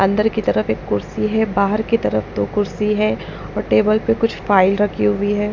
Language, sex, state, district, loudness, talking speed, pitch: Hindi, female, Punjab, Pathankot, -18 LUFS, 215 wpm, 205 Hz